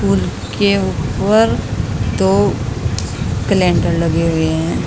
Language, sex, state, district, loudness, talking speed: Hindi, female, Uttar Pradesh, Saharanpur, -16 LUFS, 85 wpm